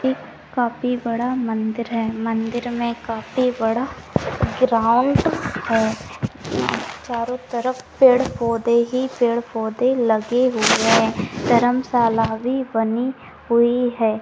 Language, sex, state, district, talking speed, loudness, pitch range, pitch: Hindi, female, Bihar, Jahanabad, 100 wpm, -20 LUFS, 225-250 Hz, 235 Hz